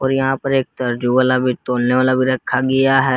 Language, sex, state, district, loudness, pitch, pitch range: Hindi, male, Jharkhand, Garhwa, -17 LUFS, 130 Hz, 125-135 Hz